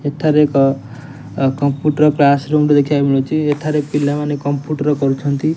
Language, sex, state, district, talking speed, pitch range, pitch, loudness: Odia, male, Odisha, Nuapada, 130 wpm, 140-150 Hz, 145 Hz, -15 LUFS